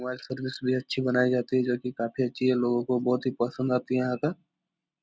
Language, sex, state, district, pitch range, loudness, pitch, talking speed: Hindi, male, Bihar, Supaul, 125-130 Hz, -28 LUFS, 125 Hz, 250 wpm